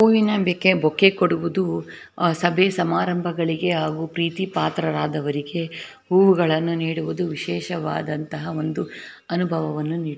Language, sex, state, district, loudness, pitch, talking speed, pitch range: Kannada, female, Karnataka, Belgaum, -22 LUFS, 165 Hz, 85 wpm, 155-180 Hz